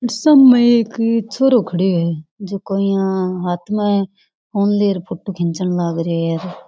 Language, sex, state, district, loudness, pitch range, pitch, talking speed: Rajasthani, female, Rajasthan, Churu, -16 LUFS, 180-220 Hz, 195 Hz, 145 wpm